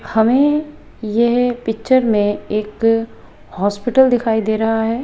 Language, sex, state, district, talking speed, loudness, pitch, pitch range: Hindi, female, Rajasthan, Jaipur, 120 wpm, -16 LUFS, 225 Hz, 220-245 Hz